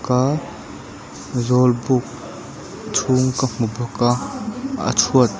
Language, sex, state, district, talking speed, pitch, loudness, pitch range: Mizo, male, Mizoram, Aizawl, 100 wpm, 125 Hz, -19 LUFS, 120-135 Hz